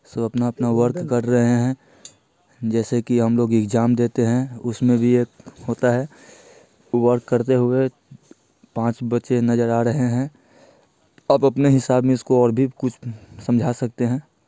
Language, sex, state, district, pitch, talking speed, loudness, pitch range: Hindi, male, Bihar, East Champaran, 120 Hz, 155 wpm, -20 LUFS, 120-125 Hz